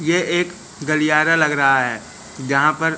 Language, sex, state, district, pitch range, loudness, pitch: Hindi, male, Madhya Pradesh, Katni, 140-165 Hz, -17 LUFS, 155 Hz